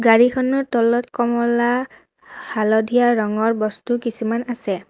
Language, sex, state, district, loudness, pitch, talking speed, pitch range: Assamese, female, Assam, Kamrup Metropolitan, -19 LUFS, 235 Hz, 100 wpm, 220-245 Hz